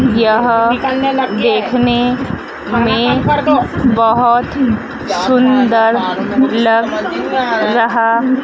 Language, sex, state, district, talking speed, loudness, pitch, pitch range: Hindi, female, Madhya Pradesh, Dhar, 50 wpm, -13 LUFS, 240 Hz, 230-260 Hz